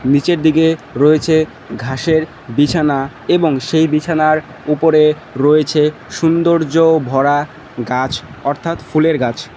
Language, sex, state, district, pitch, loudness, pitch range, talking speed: Bengali, male, West Bengal, Cooch Behar, 155 Hz, -14 LUFS, 140-160 Hz, 100 wpm